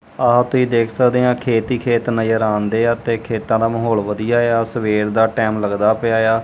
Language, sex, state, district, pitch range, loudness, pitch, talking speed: Punjabi, male, Punjab, Kapurthala, 110-120 Hz, -17 LUFS, 115 Hz, 225 wpm